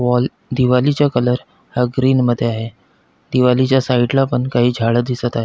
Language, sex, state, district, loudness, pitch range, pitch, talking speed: Marathi, male, Maharashtra, Pune, -16 LUFS, 120-130 Hz, 125 Hz, 165 wpm